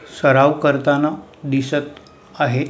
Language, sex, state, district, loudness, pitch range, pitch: Marathi, male, Maharashtra, Mumbai Suburban, -18 LUFS, 140-150 Hz, 145 Hz